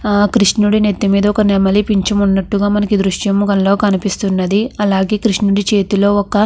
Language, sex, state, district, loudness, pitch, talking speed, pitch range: Telugu, female, Andhra Pradesh, Krishna, -14 LUFS, 205 Hz, 160 wpm, 200-210 Hz